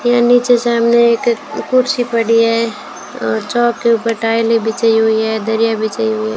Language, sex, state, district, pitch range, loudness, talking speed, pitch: Hindi, female, Rajasthan, Bikaner, 220-235 Hz, -14 LUFS, 170 wpm, 230 Hz